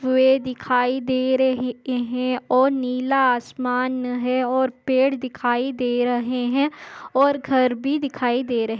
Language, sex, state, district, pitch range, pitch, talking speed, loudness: Hindi, female, Maharashtra, Solapur, 250-260 Hz, 255 Hz, 145 wpm, -21 LUFS